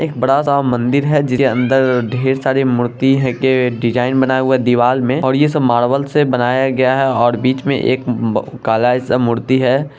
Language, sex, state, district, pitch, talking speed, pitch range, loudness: Hindi, male, Bihar, Saharsa, 130 Hz, 205 wpm, 125-135 Hz, -14 LUFS